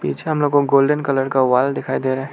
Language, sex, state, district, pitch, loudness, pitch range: Hindi, male, Arunachal Pradesh, Lower Dibang Valley, 140 Hz, -18 LUFS, 135-145 Hz